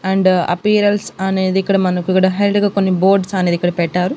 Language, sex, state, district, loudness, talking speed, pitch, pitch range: Telugu, female, Andhra Pradesh, Annamaya, -15 LUFS, 200 wpm, 190 Hz, 180-195 Hz